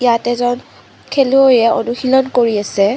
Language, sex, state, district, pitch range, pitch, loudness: Assamese, female, Assam, Kamrup Metropolitan, 230-260 Hz, 245 Hz, -14 LUFS